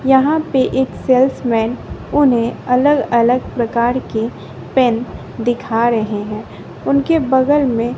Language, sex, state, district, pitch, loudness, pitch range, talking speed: Hindi, female, Bihar, West Champaran, 245 Hz, -16 LUFS, 235-265 Hz, 120 wpm